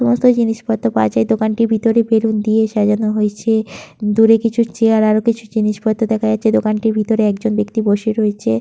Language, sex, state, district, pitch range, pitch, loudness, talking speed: Bengali, female, West Bengal, Purulia, 210-225 Hz, 220 Hz, -15 LUFS, 165 wpm